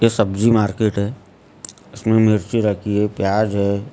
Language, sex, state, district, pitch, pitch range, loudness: Hindi, male, Maharashtra, Gondia, 105 Hz, 100-110 Hz, -18 LUFS